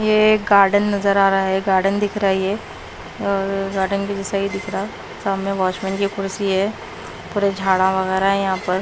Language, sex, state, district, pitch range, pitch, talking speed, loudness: Hindi, female, Punjab, Pathankot, 190-200 Hz, 195 Hz, 190 wpm, -19 LUFS